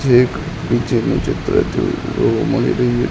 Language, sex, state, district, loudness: Gujarati, male, Gujarat, Gandhinagar, -17 LUFS